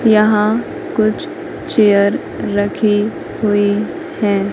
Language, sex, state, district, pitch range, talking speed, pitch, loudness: Hindi, female, Madhya Pradesh, Katni, 205-215 Hz, 80 wpm, 210 Hz, -16 LUFS